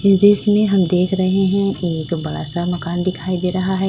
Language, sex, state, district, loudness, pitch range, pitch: Hindi, female, Uttar Pradesh, Lalitpur, -17 LUFS, 175-195 Hz, 185 Hz